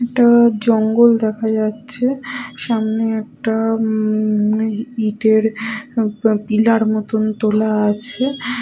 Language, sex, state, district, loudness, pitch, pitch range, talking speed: Bengali, female, West Bengal, Purulia, -17 LUFS, 220 Hz, 215-230 Hz, 110 wpm